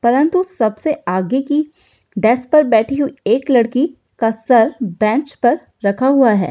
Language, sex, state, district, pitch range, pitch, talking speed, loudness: Hindi, female, Bihar, Saharsa, 220-290 Hz, 255 Hz, 155 wpm, -16 LUFS